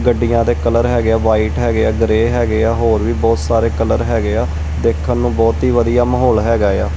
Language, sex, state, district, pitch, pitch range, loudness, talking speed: Punjabi, male, Punjab, Kapurthala, 110 Hz, 80-115 Hz, -15 LUFS, 225 wpm